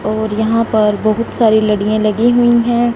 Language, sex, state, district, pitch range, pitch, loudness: Hindi, female, Punjab, Fazilka, 215-235 Hz, 220 Hz, -13 LUFS